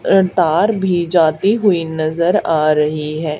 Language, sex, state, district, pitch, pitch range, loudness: Hindi, female, Haryana, Charkhi Dadri, 165 Hz, 155-190 Hz, -15 LUFS